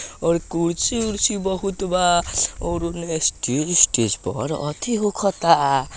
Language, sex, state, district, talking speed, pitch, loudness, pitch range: Hindi, male, Bihar, Vaishali, 130 wpm, 170 Hz, -20 LUFS, 155-195 Hz